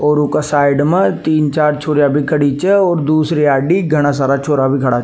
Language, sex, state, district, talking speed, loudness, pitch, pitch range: Rajasthani, male, Rajasthan, Nagaur, 250 wpm, -14 LUFS, 150 Hz, 140-155 Hz